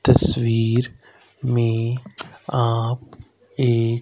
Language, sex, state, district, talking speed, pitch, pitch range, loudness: Hindi, male, Haryana, Rohtak, 60 wpm, 120 Hz, 115-120 Hz, -21 LUFS